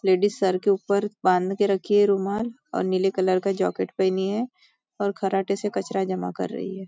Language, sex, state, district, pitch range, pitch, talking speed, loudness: Hindi, female, Maharashtra, Nagpur, 190-205 Hz, 195 Hz, 210 wpm, -24 LUFS